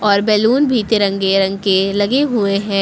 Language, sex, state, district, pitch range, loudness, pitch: Hindi, female, Uttar Pradesh, Lucknow, 195-220 Hz, -15 LUFS, 205 Hz